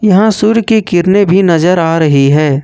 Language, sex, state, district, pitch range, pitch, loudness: Hindi, male, Jharkhand, Ranchi, 165-210 Hz, 180 Hz, -9 LUFS